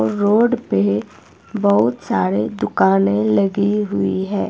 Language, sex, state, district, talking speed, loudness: Hindi, female, Himachal Pradesh, Shimla, 105 wpm, -17 LUFS